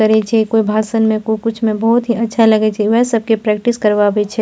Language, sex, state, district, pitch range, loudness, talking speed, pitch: Maithili, female, Bihar, Purnia, 215-225 Hz, -14 LUFS, 245 wpm, 220 Hz